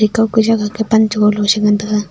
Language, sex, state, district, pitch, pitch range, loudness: Wancho, female, Arunachal Pradesh, Longding, 215 Hz, 210-220 Hz, -14 LUFS